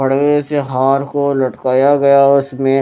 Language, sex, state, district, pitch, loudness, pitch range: Hindi, male, Odisha, Malkangiri, 140 Hz, -13 LUFS, 135-140 Hz